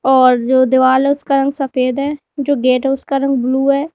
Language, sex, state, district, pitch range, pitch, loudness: Hindi, female, Uttar Pradesh, Lalitpur, 260-280 Hz, 270 Hz, -14 LUFS